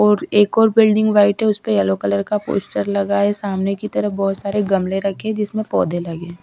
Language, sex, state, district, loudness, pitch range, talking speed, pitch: Hindi, female, Bihar, Katihar, -18 LUFS, 195-210 Hz, 215 wpm, 200 Hz